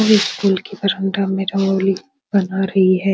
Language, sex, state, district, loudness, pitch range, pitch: Hindi, female, Bihar, Supaul, -18 LUFS, 195-200 Hz, 195 Hz